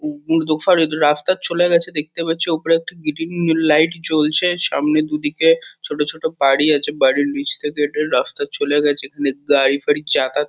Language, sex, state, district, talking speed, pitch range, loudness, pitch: Bengali, male, West Bengal, Kolkata, 155 wpm, 145-170 Hz, -17 LUFS, 155 Hz